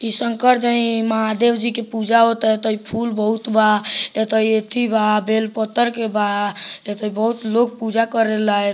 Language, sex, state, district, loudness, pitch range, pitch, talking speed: Bhojpuri, male, Bihar, Muzaffarpur, -18 LUFS, 215-230 Hz, 220 Hz, 205 wpm